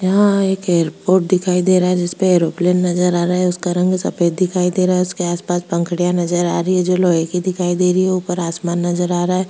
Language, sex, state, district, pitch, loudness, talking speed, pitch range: Hindi, female, Bihar, Kishanganj, 180 Hz, -16 LUFS, 255 wpm, 175-185 Hz